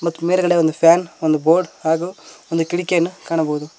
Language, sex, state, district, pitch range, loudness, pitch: Kannada, male, Karnataka, Koppal, 160-175 Hz, -18 LUFS, 165 Hz